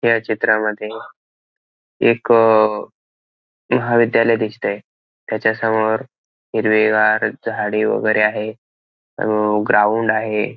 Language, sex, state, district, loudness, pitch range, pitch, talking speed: Marathi, male, Maharashtra, Aurangabad, -17 LUFS, 105-110 Hz, 110 Hz, 80 wpm